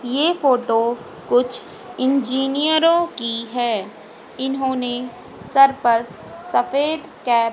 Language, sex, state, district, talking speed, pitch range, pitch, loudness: Hindi, female, Haryana, Jhajjar, 95 wpm, 235-275 Hz, 250 Hz, -19 LUFS